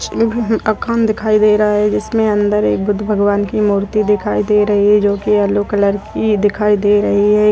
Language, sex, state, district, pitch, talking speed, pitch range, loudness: Hindi, female, Maharashtra, Pune, 210 Hz, 205 wpm, 205-215 Hz, -14 LUFS